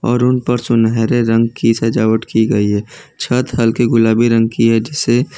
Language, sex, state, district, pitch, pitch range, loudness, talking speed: Hindi, male, Gujarat, Valsad, 115 Hz, 115-120 Hz, -14 LUFS, 190 wpm